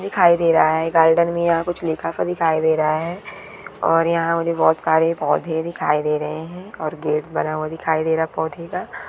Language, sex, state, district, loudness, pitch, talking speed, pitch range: Hindi, female, West Bengal, Jalpaiguri, -19 LUFS, 160 Hz, 215 wpm, 160-170 Hz